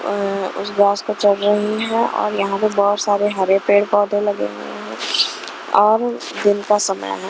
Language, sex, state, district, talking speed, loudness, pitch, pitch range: Hindi, female, Punjab, Kapurthala, 190 wpm, -18 LUFS, 205 Hz, 195-210 Hz